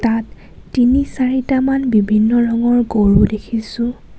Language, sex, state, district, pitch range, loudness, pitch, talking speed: Assamese, female, Assam, Kamrup Metropolitan, 220-255 Hz, -15 LUFS, 235 Hz, 85 wpm